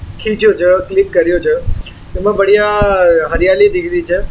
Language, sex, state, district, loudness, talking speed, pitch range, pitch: Marwari, male, Rajasthan, Churu, -12 LUFS, 140 wpm, 180-215 Hz, 200 Hz